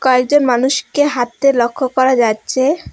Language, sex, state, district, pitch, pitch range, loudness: Bengali, female, West Bengal, Alipurduar, 260 Hz, 245-275 Hz, -14 LUFS